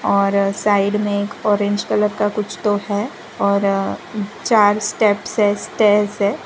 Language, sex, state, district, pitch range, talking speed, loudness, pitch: Hindi, female, Gujarat, Valsad, 200-210 Hz, 140 wpm, -18 LUFS, 205 Hz